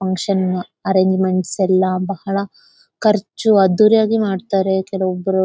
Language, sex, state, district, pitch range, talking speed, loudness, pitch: Kannada, female, Karnataka, Bellary, 185-210 Hz, 100 wpm, -17 LUFS, 190 Hz